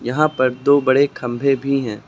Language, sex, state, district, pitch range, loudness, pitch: Hindi, female, Uttar Pradesh, Lucknow, 125-140 Hz, -17 LUFS, 135 Hz